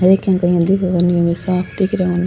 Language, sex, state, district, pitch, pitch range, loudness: Rajasthani, female, Rajasthan, Churu, 180 Hz, 175-190 Hz, -16 LUFS